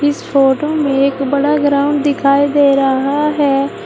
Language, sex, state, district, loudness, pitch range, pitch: Hindi, female, Uttar Pradesh, Shamli, -13 LUFS, 275-290 Hz, 280 Hz